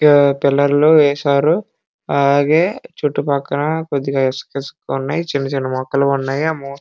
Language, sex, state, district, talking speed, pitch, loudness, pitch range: Telugu, male, Andhra Pradesh, Srikakulam, 90 wpm, 140 Hz, -16 LUFS, 140-150 Hz